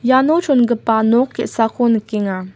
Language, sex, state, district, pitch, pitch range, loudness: Garo, female, Meghalaya, West Garo Hills, 235 Hz, 220-250 Hz, -16 LUFS